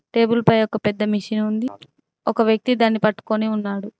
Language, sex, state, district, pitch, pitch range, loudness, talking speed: Telugu, female, Telangana, Mahabubabad, 220 Hz, 210-230 Hz, -20 LUFS, 165 wpm